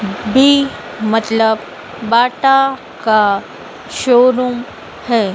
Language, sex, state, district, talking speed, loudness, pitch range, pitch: Hindi, female, Madhya Pradesh, Dhar, 65 wpm, -14 LUFS, 220-255 Hz, 235 Hz